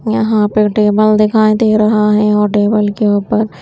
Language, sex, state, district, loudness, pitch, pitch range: Hindi, female, Haryana, Jhajjar, -12 LUFS, 215 Hz, 210-215 Hz